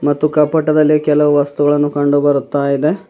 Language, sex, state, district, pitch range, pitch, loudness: Kannada, male, Karnataka, Bidar, 145-150 Hz, 145 Hz, -14 LUFS